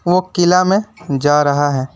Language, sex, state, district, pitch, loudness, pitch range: Hindi, male, West Bengal, Alipurduar, 175 Hz, -15 LUFS, 145-185 Hz